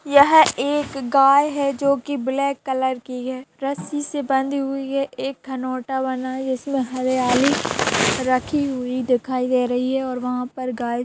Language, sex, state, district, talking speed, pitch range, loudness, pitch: Hindi, female, Bihar, Saharsa, 170 wpm, 255-280 Hz, -21 LUFS, 265 Hz